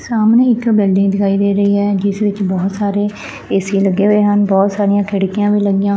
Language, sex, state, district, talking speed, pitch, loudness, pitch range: Punjabi, female, Punjab, Fazilka, 200 wpm, 200 Hz, -14 LUFS, 195-205 Hz